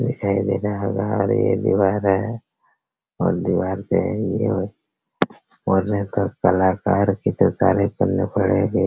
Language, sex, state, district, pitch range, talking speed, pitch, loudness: Hindi, male, Bihar, Araria, 95-105 Hz, 120 wpm, 100 Hz, -21 LUFS